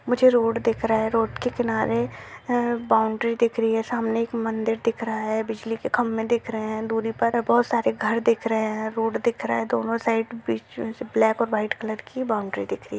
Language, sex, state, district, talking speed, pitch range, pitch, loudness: Hindi, female, Chhattisgarh, Rajnandgaon, 225 wpm, 220-235 Hz, 225 Hz, -24 LUFS